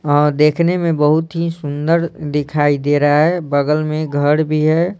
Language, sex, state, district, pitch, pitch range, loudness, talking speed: Hindi, male, Bihar, Patna, 150 Hz, 145-165 Hz, -16 LUFS, 180 wpm